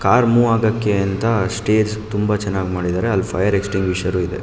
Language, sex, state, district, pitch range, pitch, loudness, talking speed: Kannada, male, Karnataka, Mysore, 95-110 Hz, 100 Hz, -18 LUFS, 175 wpm